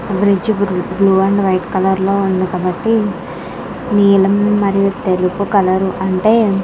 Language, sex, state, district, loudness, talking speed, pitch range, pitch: Telugu, female, Andhra Pradesh, Krishna, -14 LUFS, 145 wpm, 190-200 Hz, 195 Hz